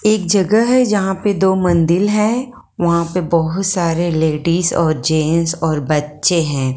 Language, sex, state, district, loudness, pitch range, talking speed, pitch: Hindi, female, Himachal Pradesh, Shimla, -16 LUFS, 160-195 Hz, 160 wpm, 170 Hz